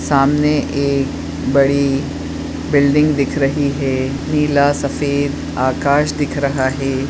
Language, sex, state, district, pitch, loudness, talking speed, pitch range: Hindi, female, Maharashtra, Nagpur, 140 Hz, -17 LUFS, 110 wpm, 135-145 Hz